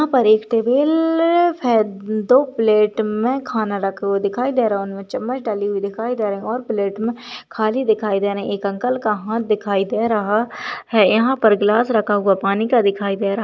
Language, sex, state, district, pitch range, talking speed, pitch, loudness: Hindi, female, Chhattisgarh, Balrampur, 200-240 Hz, 205 wpm, 220 Hz, -18 LUFS